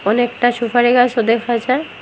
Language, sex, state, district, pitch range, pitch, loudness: Bengali, female, Assam, Hailakandi, 235-245 Hz, 240 Hz, -15 LUFS